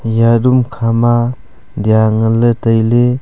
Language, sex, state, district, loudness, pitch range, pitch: Wancho, male, Arunachal Pradesh, Longding, -12 LUFS, 110-120 Hz, 115 Hz